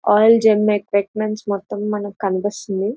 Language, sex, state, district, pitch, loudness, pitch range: Telugu, female, Andhra Pradesh, Visakhapatnam, 210 Hz, -18 LUFS, 200-215 Hz